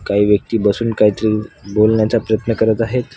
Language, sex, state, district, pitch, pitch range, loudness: Marathi, male, Maharashtra, Washim, 110 Hz, 105-115 Hz, -16 LUFS